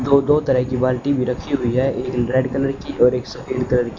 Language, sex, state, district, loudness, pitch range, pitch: Hindi, male, Haryana, Charkhi Dadri, -19 LUFS, 125-135 Hz, 130 Hz